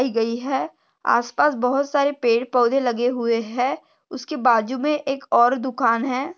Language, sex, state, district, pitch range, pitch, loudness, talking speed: Hindi, female, Maharashtra, Sindhudurg, 240-275 Hz, 255 Hz, -21 LUFS, 170 wpm